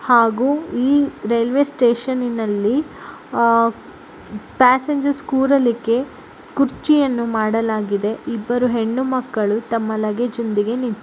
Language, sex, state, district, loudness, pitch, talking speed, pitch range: Kannada, male, Karnataka, Bellary, -18 LUFS, 240 Hz, 80 wpm, 225-265 Hz